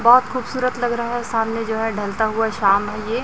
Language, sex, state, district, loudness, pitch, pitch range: Hindi, male, Chhattisgarh, Raipur, -20 LUFS, 225 Hz, 220-245 Hz